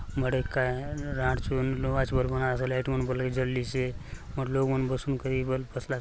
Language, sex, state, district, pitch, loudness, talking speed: Halbi, male, Chhattisgarh, Bastar, 130 Hz, -30 LUFS, 160 wpm